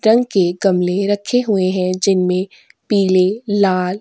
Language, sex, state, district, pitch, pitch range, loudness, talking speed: Hindi, female, Chhattisgarh, Korba, 195 Hz, 185-205 Hz, -16 LUFS, 150 wpm